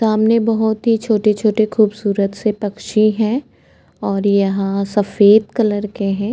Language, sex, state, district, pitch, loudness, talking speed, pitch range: Hindi, female, Maharashtra, Chandrapur, 215 Hz, -16 LUFS, 140 wpm, 200-220 Hz